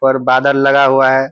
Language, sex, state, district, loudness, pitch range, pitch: Hindi, male, Bihar, Purnia, -11 LUFS, 130-140 Hz, 135 Hz